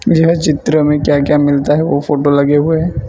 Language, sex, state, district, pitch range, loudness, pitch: Hindi, male, Gujarat, Valsad, 145-155 Hz, -12 LUFS, 150 Hz